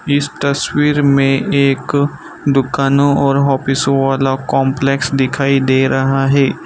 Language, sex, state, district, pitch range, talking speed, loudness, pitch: Hindi, male, Gujarat, Valsad, 135-140 Hz, 115 wpm, -14 LUFS, 140 Hz